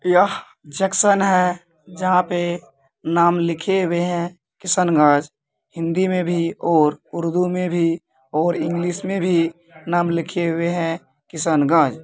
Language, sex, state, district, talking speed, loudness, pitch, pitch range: Maithili, male, Bihar, Kishanganj, 130 wpm, -20 LUFS, 170 Hz, 165-180 Hz